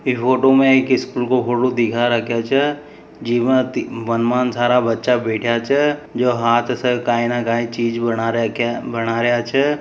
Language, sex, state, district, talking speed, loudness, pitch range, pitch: Marwari, male, Rajasthan, Nagaur, 175 wpm, -18 LUFS, 115-130 Hz, 120 Hz